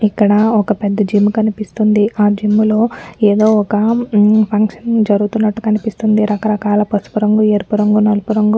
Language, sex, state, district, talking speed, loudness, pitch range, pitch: Telugu, female, Andhra Pradesh, Anantapur, 145 wpm, -14 LUFS, 210-215 Hz, 210 Hz